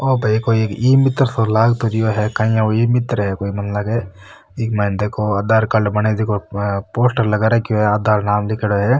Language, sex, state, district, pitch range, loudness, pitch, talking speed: Marwari, male, Rajasthan, Nagaur, 105-115 Hz, -17 LUFS, 110 Hz, 200 wpm